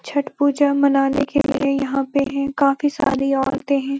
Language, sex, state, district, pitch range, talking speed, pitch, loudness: Hindi, female, Uttarakhand, Uttarkashi, 275-285 Hz, 180 wpm, 280 Hz, -19 LUFS